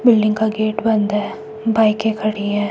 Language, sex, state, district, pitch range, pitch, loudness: Hindi, female, Himachal Pradesh, Shimla, 215-220 Hz, 215 Hz, -18 LUFS